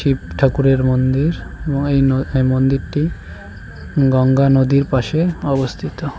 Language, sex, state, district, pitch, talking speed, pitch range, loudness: Bengali, male, West Bengal, Cooch Behar, 135 Hz, 115 wpm, 130-140 Hz, -17 LUFS